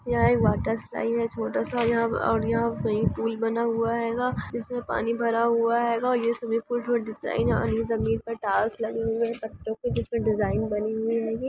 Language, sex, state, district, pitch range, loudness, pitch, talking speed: Hindi, female, Andhra Pradesh, Chittoor, 220-235 Hz, -26 LUFS, 230 Hz, 85 wpm